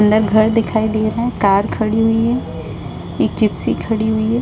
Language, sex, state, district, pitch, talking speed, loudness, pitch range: Hindi, female, Uttar Pradesh, Budaun, 220 Hz, 205 wpm, -16 LUFS, 215-225 Hz